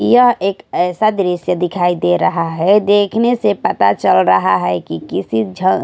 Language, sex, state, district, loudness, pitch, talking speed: Hindi, female, Odisha, Khordha, -14 LUFS, 175 Hz, 175 wpm